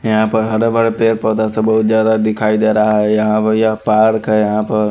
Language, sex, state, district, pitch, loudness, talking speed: Hindi, male, Haryana, Charkhi Dadri, 110 Hz, -14 LUFS, 195 wpm